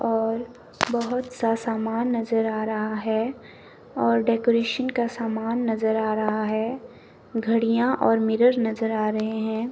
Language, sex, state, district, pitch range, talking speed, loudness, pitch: Hindi, male, Himachal Pradesh, Shimla, 220-235 Hz, 140 wpm, -24 LUFS, 225 Hz